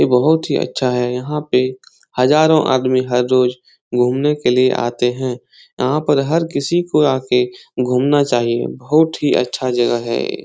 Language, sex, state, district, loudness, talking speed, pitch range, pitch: Hindi, male, Bihar, Lakhisarai, -16 LUFS, 170 wpm, 125-150 Hz, 130 Hz